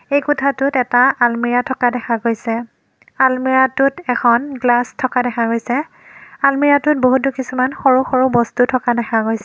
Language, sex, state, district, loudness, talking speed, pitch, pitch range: Assamese, female, Assam, Kamrup Metropolitan, -16 LUFS, 150 wpm, 255 Hz, 240-265 Hz